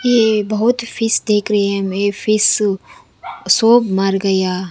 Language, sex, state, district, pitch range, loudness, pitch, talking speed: Hindi, female, Punjab, Kapurthala, 195-225 Hz, -15 LUFS, 210 Hz, 140 wpm